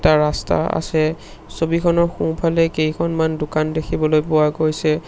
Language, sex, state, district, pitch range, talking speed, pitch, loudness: Assamese, male, Assam, Sonitpur, 155-165 Hz, 120 wpm, 155 Hz, -19 LUFS